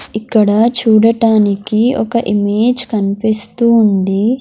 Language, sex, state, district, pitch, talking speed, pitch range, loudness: Telugu, female, Andhra Pradesh, Sri Satya Sai, 220 Hz, 80 wpm, 210-230 Hz, -12 LUFS